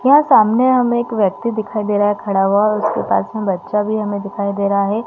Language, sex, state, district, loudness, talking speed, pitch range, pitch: Hindi, female, Chhattisgarh, Balrampur, -16 LUFS, 275 wpm, 200-230 Hz, 210 Hz